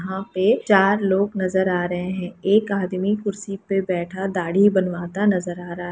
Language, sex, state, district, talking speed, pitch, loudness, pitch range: Hindi, female, Bihar, Lakhisarai, 190 wpm, 190 Hz, -21 LUFS, 180-200 Hz